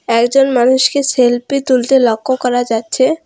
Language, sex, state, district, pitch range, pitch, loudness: Bengali, female, West Bengal, Alipurduar, 245-270 Hz, 255 Hz, -13 LUFS